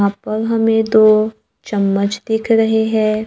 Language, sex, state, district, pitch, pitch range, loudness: Hindi, male, Maharashtra, Gondia, 220 Hz, 210-220 Hz, -15 LUFS